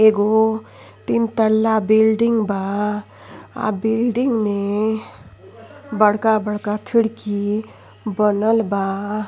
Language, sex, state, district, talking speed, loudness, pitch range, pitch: Bhojpuri, female, Uttar Pradesh, Ghazipur, 80 wpm, -19 LUFS, 210-220 Hz, 215 Hz